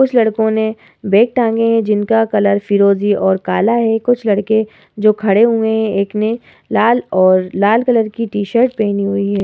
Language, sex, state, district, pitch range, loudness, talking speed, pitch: Hindi, female, Uttar Pradesh, Muzaffarnagar, 200-230 Hz, -14 LUFS, 185 wpm, 215 Hz